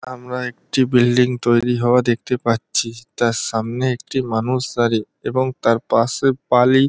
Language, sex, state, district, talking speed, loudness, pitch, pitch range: Bengali, male, West Bengal, North 24 Parganas, 150 wpm, -18 LUFS, 125 Hz, 115-130 Hz